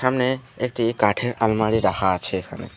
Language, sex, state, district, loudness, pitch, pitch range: Bengali, male, West Bengal, Alipurduar, -22 LUFS, 110 Hz, 100-125 Hz